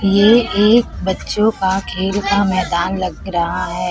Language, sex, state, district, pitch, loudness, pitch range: Hindi, female, Chhattisgarh, Raipur, 190 Hz, -16 LUFS, 185-205 Hz